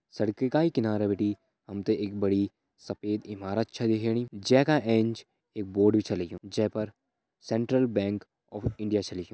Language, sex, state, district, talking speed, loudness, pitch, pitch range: Hindi, male, Uttarakhand, Tehri Garhwal, 185 wpm, -28 LUFS, 105 Hz, 100-115 Hz